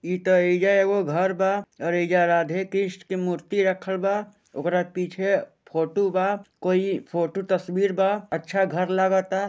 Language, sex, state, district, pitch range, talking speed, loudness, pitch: Bhojpuri, male, Jharkhand, Sahebganj, 180-195 Hz, 145 wpm, -24 LUFS, 190 Hz